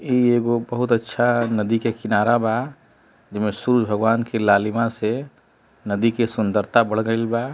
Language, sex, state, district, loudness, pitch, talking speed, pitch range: Bhojpuri, male, Uttar Pradesh, Deoria, -20 LUFS, 115 Hz, 160 wpm, 110-120 Hz